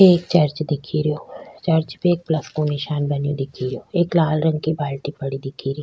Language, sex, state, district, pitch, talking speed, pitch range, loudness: Rajasthani, female, Rajasthan, Churu, 150 Hz, 225 wpm, 140-160 Hz, -21 LUFS